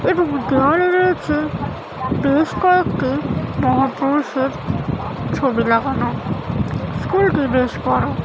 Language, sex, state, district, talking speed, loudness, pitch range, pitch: Bengali, female, West Bengal, North 24 Parganas, 95 wpm, -18 LUFS, 265-350 Hz, 280 Hz